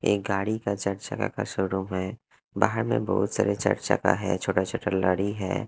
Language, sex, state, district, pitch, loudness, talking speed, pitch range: Hindi, male, Punjab, Kapurthala, 100 Hz, -27 LUFS, 180 wpm, 95-105 Hz